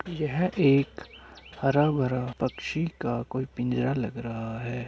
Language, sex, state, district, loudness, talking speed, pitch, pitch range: Hindi, male, Uttar Pradesh, Varanasi, -28 LUFS, 125 wpm, 130 Hz, 120-150 Hz